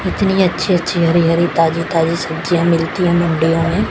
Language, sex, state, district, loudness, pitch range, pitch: Hindi, female, Chhattisgarh, Raipur, -15 LUFS, 165-175 Hz, 170 Hz